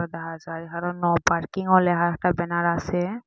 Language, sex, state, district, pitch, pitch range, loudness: Bengali, female, Assam, Hailakandi, 170 Hz, 170-180 Hz, -23 LUFS